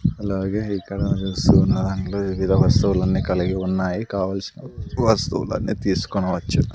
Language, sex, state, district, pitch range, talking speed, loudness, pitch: Telugu, male, Andhra Pradesh, Sri Satya Sai, 95-105 Hz, 100 wpm, -21 LUFS, 95 Hz